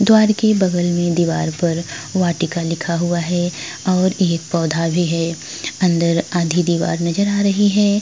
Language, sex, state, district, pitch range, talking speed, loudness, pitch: Hindi, female, Chhattisgarh, Korba, 170-185 Hz, 150 wpm, -18 LUFS, 175 Hz